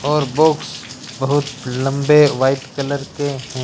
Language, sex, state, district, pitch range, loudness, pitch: Hindi, male, Rajasthan, Bikaner, 130-145 Hz, -17 LUFS, 140 Hz